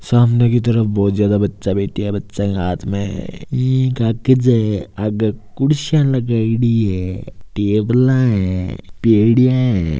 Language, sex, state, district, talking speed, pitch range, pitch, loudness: Hindi, male, Rajasthan, Nagaur, 140 wpm, 100-125 Hz, 110 Hz, -16 LUFS